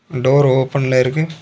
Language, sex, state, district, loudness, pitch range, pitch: Tamil, male, Tamil Nadu, Kanyakumari, -15 LUFS, 130-155 Hz, 135 Hz